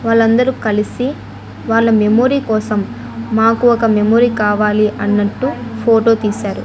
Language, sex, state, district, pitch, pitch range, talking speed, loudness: Telugu, female, Andhra Pradesh, Annamaya, 220 Hz, 210-230 Hz, 110 wpm, -14 LUFS